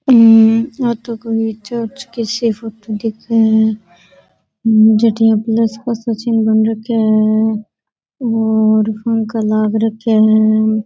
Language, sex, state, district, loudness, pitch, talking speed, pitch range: Rajasthani, female, Rajasthan, Nagaur, -14 LUFS, 220 Hz, 125 wpm, 215-230 Hz